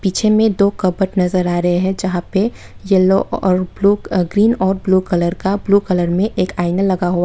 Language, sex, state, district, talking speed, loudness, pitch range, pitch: Hindi, female, Tripura, West Tripura, 205 wpm, -16 LUFS, 180-200 Hz, 190 Hz